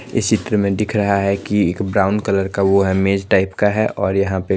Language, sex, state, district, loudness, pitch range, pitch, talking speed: Hindi, male, Chandigarh, Chandigarh, -17 LUFS, 95-105 Hz, 100 Hz, 260 wpm